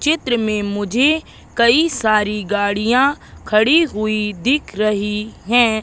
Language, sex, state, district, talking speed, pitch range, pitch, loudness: Hindi, female, Madhya Pradesh, Katni, 115 wpm, 210-260 Hz, 220 Hz, -17 LUFS